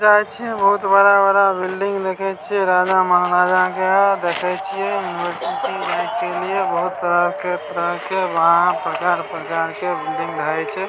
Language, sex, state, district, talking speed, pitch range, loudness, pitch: Maithili, male, Bihar, Samastipur, 110 wpm, 180-195 Hz, -18 LUFS, 185 Hz